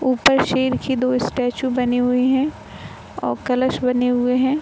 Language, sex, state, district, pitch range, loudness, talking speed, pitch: Hindi, female, Bihar, Gopalganj, 250-260 Hz, -19 LUFS, 170 wpm, 255 Hz